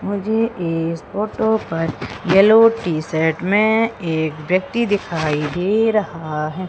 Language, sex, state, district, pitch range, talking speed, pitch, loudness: Hindi, female, Madhya Pradesh, Umaria, 160-215 Hz, 125 wpm, 180 Hz, -18 LUFS